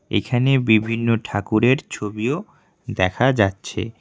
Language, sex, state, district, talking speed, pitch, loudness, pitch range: Bengali, male, West Bengal, Cooch Behar, 90 wpm, 115 Hz, -20 LUFS, 105-130 Hz